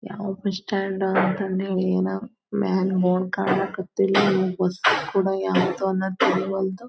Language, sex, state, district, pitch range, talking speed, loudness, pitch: Kannada, female, Karnataka, Belgaum, 185-195 Hz, 120 wpm, -23 LUFS, 190 Hz